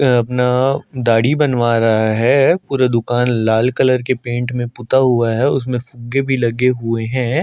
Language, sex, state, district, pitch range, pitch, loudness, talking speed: Hindi, male, Chhattisgarh, Sukma, 120-130 Hz, 125 Hz, -16 LUFS, 180 wpm